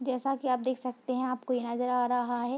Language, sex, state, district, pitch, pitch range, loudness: Hindi, female, Bihar, Darbhanga, 250 Hz, 245-255 Hz, -31 LUFS